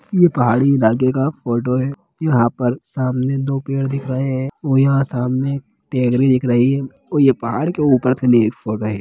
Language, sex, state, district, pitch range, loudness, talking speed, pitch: Hindi, male, Bihar, Jahanabad, 125-135 Hz, -17 LUFS, 205 wpm, 130 Hz